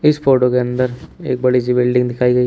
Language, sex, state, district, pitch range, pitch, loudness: Hindi, male, Uttar Pradesh, Shamli, 125-130 Hz, 125 Hz, -16 LUFS